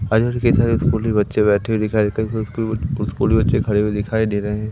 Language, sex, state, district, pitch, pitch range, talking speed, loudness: Hindi, male, Madhya Pradesh, Umaria, 110 Hz, 105-110 Hz, 190 wpm, -19 LUFS